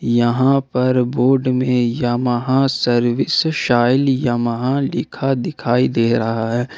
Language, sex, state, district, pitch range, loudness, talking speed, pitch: Hindi, male, Jharkhand, Ranchi, 120-130 Hz, -17 LUFS, 115 wpm, 125 Hz